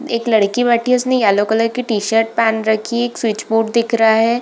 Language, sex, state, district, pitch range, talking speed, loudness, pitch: Hindi, female, Bihar, Purnia, 220-235 Hz, 260 wpm, -15 LUFS, 225 Hz